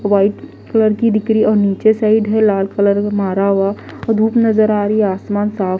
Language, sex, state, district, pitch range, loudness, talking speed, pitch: Hindi, female, Delhi, New Delhi, 200-220 Hz, -15 LUFS, 225 wpm, 210 Hz